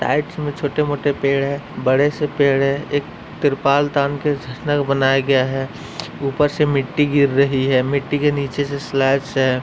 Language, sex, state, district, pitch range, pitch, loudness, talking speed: Hindi, male, Uttar Pradesh, Etah, 135-145 Hz, 140 Hz, -18 LUFS, 175 wpm